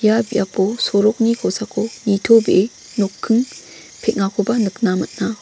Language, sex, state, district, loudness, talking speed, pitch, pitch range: Garo, female, Meghalaya, West Garo Hills, -18 LUFS, 100 wpm, 215 Hz, 200-230 Hz